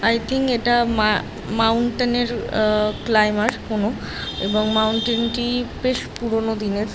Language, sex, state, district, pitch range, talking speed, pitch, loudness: Bengali, female, West Bengal, Jhargram, 215-240 Hz, 130 wpm, 225 Hz, -20 LUFS